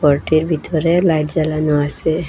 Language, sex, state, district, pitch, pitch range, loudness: Bengali, female, Assam, Hailakandi, 155 Hz, 150-165 Hz, -16 LUFS